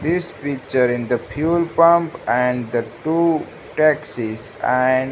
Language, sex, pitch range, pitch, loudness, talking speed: English, male, 125-165 Hz, 130 Hz, -19 LUFS, 140 wpm